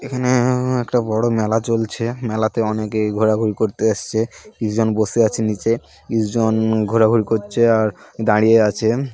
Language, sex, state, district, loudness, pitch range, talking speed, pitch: Bengali, male, West Bengal, Paschim Medinipur, -18 LUFS, 110-115 Hz, 140 wpm, 110 Hz